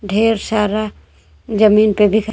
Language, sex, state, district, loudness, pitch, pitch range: Hindi, female, Jharkhand, Garhwa, -15 LUFS, 210 Hz, 205-215 Hz